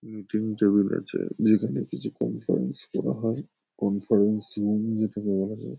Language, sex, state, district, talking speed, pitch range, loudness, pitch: Bengali, male, West Bengal, Kolkata, 145 wpm, 100-110 Hz, -26 LUFS, 105 Hz